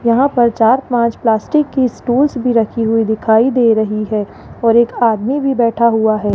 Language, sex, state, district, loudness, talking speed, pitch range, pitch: Hindi, male, Rajasthan, Jaipur, -14 LUFS, 200 wpm, 220-245 Hz, 235 Hz